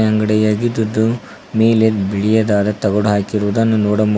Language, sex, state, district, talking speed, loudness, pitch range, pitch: Kannada, male, Karnataka, Koppal, 85 wpm, -16 LUFS, 105-110 Hz, 110 Hz